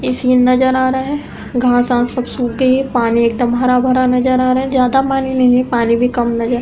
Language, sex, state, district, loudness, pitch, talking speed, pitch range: Hindi, female, Uttar Pradesh, Hamirpur, -14 LUFS, 250 Hz, 260 wpm, 245-260 Hz